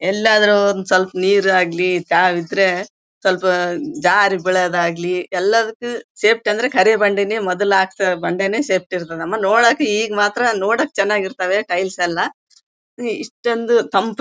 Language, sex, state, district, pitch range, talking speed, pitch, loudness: Kannada, female, Karnataka, Bellary, 185-220 Hz, 120 wpm, 195 Hz, -17 LUFS